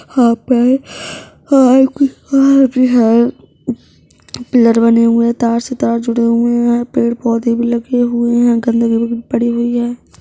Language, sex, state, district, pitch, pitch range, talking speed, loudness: Hindi, female, Bihar, Madhepura, 240 Hz, 235-250 Hz, 130 wpm, -13 LUFS